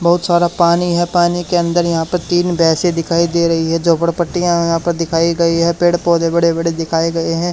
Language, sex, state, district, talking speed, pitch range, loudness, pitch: Hindi, male, Haryana, Charkhi Dadri, 230 wpm, 165-175 Hz, -15 LUFS, 170 Hz